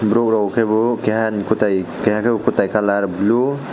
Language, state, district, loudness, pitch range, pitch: Kokborok, Tripura, West Tripura, -18 LUFS, 100-115 Hz, 110 Hz